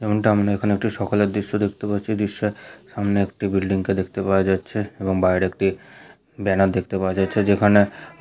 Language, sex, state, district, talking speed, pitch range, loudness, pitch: Bengali, male, West Bengal, Jhargram, 190 wpm, 95-105 Hz, -21 LUFS, 100 Hz